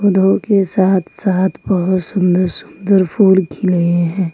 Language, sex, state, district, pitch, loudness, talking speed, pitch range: Hindi, female, Jharkhand, Ranchi, 190 Hz, -14 LUFS, 140 wpm, 180-195 Hz